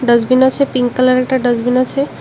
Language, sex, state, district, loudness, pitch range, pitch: Bengali, female, Tripura, West Tripura, -13 LUFS, 245-260 Hz, 255 Hz